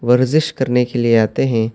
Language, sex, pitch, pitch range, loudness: Urdu, male, 125 Hz, 115-130 Hz, -16 LUFS